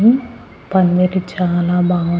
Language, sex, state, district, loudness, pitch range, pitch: Telugu, female, Andhra Pradesh, Annamaya, -16 LUFS, 175-190 Hz, 180 Hz